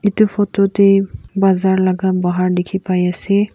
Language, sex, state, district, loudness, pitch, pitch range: Nagamese, female, Nagaland, Kohima, -15 LUFS, 190 Hz, 185-200 Hz